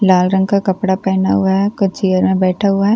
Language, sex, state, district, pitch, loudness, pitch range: Hindi, female, Bihar, Katihar, 190 Hz, -15 LUFS, 185-200 Hz